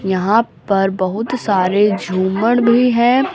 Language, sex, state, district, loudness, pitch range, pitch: Hindi, female, Uttar Pradesh, Lucknow, -15 LUFS, 190-235 Hz, 205 Hz